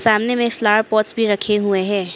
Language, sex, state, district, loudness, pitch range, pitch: Hindi, male, Arunachal Pradesh, Papum Pare, -17 LUFS, 205-225 Hz, 215 Hz